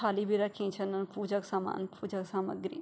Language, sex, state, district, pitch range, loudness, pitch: Garhwali, female, Uttarakhand, Tehri Garhwal, 195-205 Hz, -35 LUFS, 200 Hz